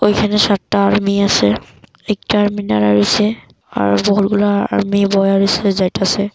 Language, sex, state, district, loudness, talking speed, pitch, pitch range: Bengali, female, Assam, Kamrup Metropolitan, -15 LUFS, 125 wpm, 200 Hz, 180-205 Hz